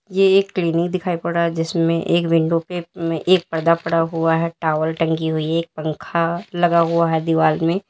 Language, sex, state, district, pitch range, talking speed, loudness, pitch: Hindi, female, Uttar Pradesh, Lalitpur, 165-175 Hz, 205 wpm, -19 LUFS, 165 Hz